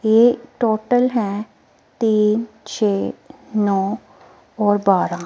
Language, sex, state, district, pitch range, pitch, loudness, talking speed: Hindi, female, Himachal Pradesh, Shimla, 205-235 Hz, 220 Hz, -19 LUFS, 90 wpm